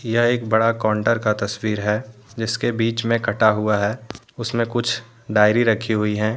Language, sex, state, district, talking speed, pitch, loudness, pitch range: Hindi, male, Jharkhand, Deoghar, 180 wpm, 110 Hz, -20 LUFS, 105-115 Hz